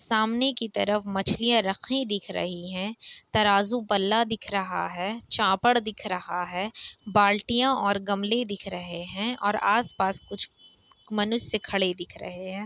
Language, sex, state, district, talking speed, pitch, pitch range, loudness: Hindi, female, Bihar, Kishanganj, 145 wpm, 205 Hz, 195-225 Hz, -26 LUFS